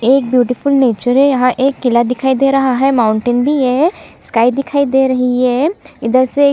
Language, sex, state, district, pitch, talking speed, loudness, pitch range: Hindi, female, Chhattisgarh, Kabirdham, 260 Hz, 195 wpm, -13 LUFS, 245-275 Hz